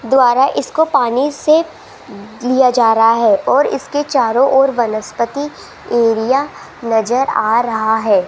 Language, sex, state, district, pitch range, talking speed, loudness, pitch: Hindi, female, Rajasthan, Jaipur, 225-275 Hz, 130 wpm, -14 LUFS, 245 Hz